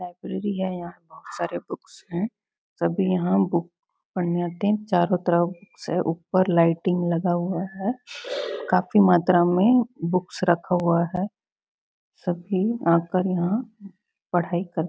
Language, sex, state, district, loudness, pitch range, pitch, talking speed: Hindi, female, Chhattisgarh, Bastar, -24 LUFS, 175-195 Hz, 180 Hz, 135 wpm